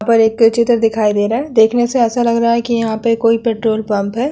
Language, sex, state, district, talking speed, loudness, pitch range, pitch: Hindi, female, Uttar Pradesh, Hamirpur, 290 wpm, -14 LUFS, 220-235 Hz, 230 Hz